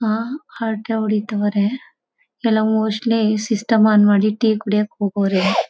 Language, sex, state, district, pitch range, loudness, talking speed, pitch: Kannada, female, Karnataka, Mysore, 210-225 Hz, -18 LUFS, 125 wpm, 215 Hz